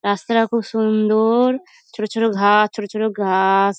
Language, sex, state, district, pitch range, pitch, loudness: Bengali, female, West Bengal, North 24 Parganas, 205-225 Hz, 215 Hz, -18 LUFS